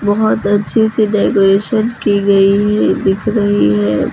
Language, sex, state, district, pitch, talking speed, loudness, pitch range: Hindi, female, Uttar Pradesh, Lucknow, 205 Hz, 145 wpm, -12 LUFS, 195-215 Hz